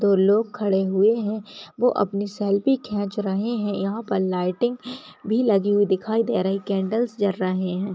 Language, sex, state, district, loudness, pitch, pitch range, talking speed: Hindi, female, Uttar Pradesh, Deoria, -23 LUFS, 205 Hz, 195-225 Hz, 180 wpm